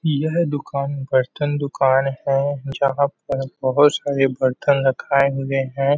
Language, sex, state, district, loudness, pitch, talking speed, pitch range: Hindi, male, Chhattisgarh, Rajnandgaon, -20 LUFS, 140 Hz, 140 wpm, 135-145 Hz